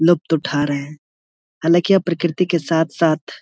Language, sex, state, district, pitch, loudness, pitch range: Hindi, male, Bihar, Saharsa, 160 Hz, -18 LUFS, 145-170 Hz